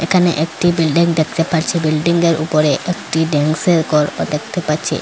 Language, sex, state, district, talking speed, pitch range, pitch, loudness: Bengali, female, Assam, Hailakandi, 145 wpm, 155-170 Hz, 160 Hz, -16 LUFS